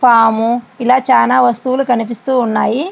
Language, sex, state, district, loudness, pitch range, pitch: Telugu, female, Andhra Pradesh, Srikakulam, -13 LUFS, 230-255 Hz, 245 Hz